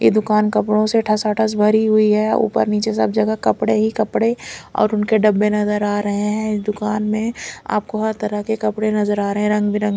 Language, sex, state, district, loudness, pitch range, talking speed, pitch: Hindi, female, Bihar, Katihar, -18 LUFS, 210-215 Hz, 205 wpm, 210 Hz